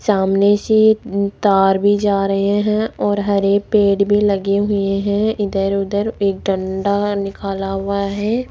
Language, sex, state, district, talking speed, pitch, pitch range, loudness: Hindi, female, Rajasthan, Jaipur, 150 wpm, 200 Hz, 195-205 Hz, -17 LUFS